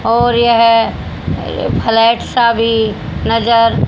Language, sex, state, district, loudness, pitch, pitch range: Hindi, female, Haryana, Charkhi Dadri, -13 LUFS, 230 Hz, 225-235 Hz